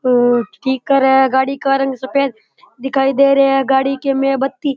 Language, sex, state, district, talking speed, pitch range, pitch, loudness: Rajasthani, male, Rajasthan, Churu, 200 wpm, 265-275 Hz, 270 Hz, -15 LUFS